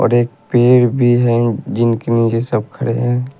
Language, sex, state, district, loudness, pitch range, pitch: Hindi, male, Haryana, Rohtak, -15 LUFS, 115-125 Hz, 120 Hz